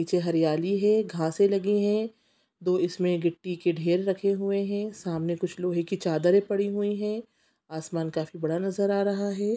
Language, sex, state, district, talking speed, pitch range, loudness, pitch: Hindi, female, Chhattisgarh, Sukma, 180 wpm, 170-205 Hz, -27 LUFS, 195 Hz